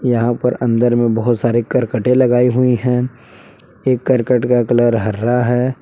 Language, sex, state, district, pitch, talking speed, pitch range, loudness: Hindi, male, Jharkhand, Palamu, 120 Hz, 165 wpm, 120-125 Hz, -15 LUFS